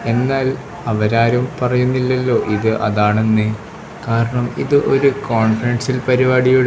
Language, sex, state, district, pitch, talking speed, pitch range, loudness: Malayalam, male, Kerala, Kasaragod, 125 Hz, 100 wpm, 110-130 Hz, -16 LUFS